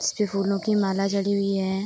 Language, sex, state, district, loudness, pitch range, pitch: Hindi, female, Bihar, Darbhanga, -24 LUFS, 195-200 Hz, 200 Hz